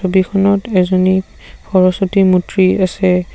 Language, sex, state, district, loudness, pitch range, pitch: Assamese, male, Assam, Sonitpur, -13 LUFS, 185-195 Hz, 185 Hz